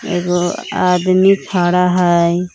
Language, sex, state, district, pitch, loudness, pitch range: Magahi, female, Jharkhand, Palamu, 180 Hz, -14 LUFS, 175-180 Hz